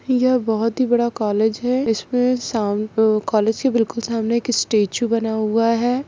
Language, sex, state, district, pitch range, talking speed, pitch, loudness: Hindi, female, Chhattisgarh, Kabirdham, 220-245 Hz, 170 wpm, 230 Hz, -19 LUFS